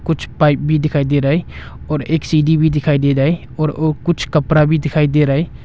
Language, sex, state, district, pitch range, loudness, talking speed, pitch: Hindi, male, Arunachal Pradesh, Longding, 145-160 Hz, -15 LUFS, 255 wpm, 155 Hz